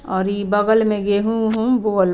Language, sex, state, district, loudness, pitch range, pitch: Bhojpuri, female, Bihar, Saran, -18 LUFS, 200-220 Hz, 210 Hz